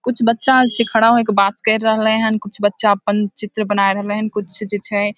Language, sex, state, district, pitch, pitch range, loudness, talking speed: Maithili, female, Bihar, Samastipur, 215 Hz, 205-225 Hz, -16 LUFS, 255 wpm